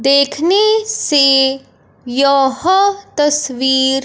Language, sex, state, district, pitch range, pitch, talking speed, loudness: Hindi, male, Punjab, Fazilka, 265-370 Hz, 275 Hz, 60 wpm, -13 LUFS